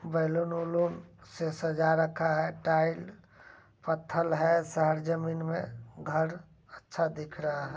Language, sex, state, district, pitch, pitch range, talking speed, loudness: Angika, male, Bihar, Begusarai, 160 Hz, 155-165 Hz, 145 wpm, -30 LUFS